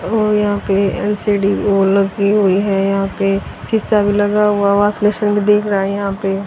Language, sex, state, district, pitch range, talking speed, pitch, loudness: Hindi, female, Haryana, Rohtak, 195-210 Hz, 205 wpm, 205 Hz, -15 LUFS